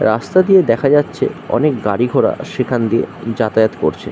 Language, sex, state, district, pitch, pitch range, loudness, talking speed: Bengali, male, West Bengal, Jhargram, 120 Hz, 115-145 Hz, -15 LUFS, 175 wpm